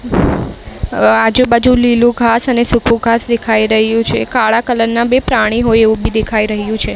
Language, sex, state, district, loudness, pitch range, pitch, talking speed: Gujarati, female, Maharashtra, Mumbai Suburban, -12 LUFS, 220-240 Hz, 230 Hz, 170 wpm